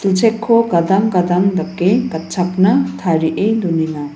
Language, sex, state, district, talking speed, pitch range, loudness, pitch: Garo, female, Meghalaya, West Garo Hills, 85 wpm, 165-205 Hz, -15 LUFS, 185 Hz